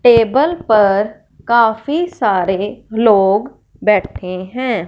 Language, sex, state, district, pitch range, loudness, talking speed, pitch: Hindi, female, Punjab, Fazilka, 200-245 Hz, -15 LUFS, 85 wpm, 220 Hz